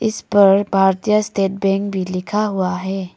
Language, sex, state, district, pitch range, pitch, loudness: Hindi, female, Arunachal Pradesh, Lower Dibang Valley, 190-205 Hz, 195 Hz, -17 LUFS